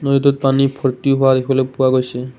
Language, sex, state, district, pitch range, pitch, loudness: Assamese, male, Assam, Kamrup Metropolitan, 130-135 Hz, 135 Hz, -16 LUFS